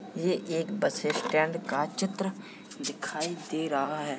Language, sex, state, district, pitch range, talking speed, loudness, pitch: Hindi, male, Uttar Pradesh, Jalaun, 155-190 Hz, 145 wpm, -30 LUFS, 165 Hz